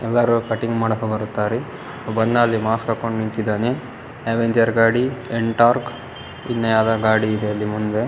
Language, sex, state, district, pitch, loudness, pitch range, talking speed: Kannada, male, Karnataka, Bellary, 115 Hz, -20 LUFS, 110-115 Hz, 120 wpm